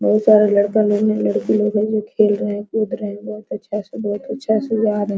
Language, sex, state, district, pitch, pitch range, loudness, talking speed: Hindi, female, Bihar, Araria, 210 Hz, 205-215 Hz, -18 LUFS, 280 wpm